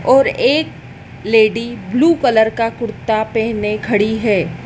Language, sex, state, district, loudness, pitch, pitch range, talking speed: Hindi, female, Madhya Pradesh, Dhar, -15 LUFS, 225 Hz, 215-245 Hz, 130 wpm